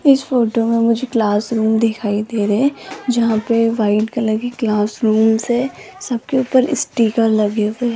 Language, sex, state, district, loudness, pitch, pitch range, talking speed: Hindi, female, Rajasthan, Jaipur, -17 LUFS, 230 Hz, 220-245 Hz, 175 wpm